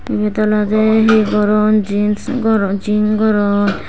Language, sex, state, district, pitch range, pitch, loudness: Chakma, female, Tripura, West Tripura, 210-215 Hz, 210 Hz, -14 LUFS